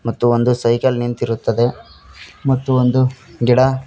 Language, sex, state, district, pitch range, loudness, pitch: Kannada, male, Karnataka, Koppal, 115-130 Hz, -17 LUFS, 120 Hz